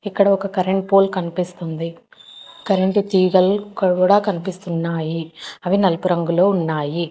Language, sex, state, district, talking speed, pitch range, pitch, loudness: Telugu, female, Telangana, Hyderabad, 120 wpm, 170-195 Hz, 185 Hz, -19 LUFS